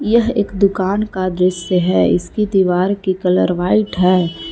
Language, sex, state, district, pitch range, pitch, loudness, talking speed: Hindi, female, Jharkhand, Palamu, 180-205 Hz, 185 Hz, -16 LUFS, 160 wpm